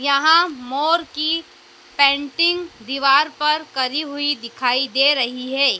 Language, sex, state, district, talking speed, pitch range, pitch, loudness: Hindi, female, Madhya Pradesh, Dhar, 125 wpm, 270-315 Hz, 285 Hz, -18 LUFS